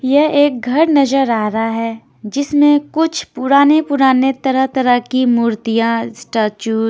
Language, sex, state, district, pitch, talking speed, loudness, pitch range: Hindi, female, Bihar, Patna, 260 Hz, 155 wpm, -14 LUFS, 230-285 Hz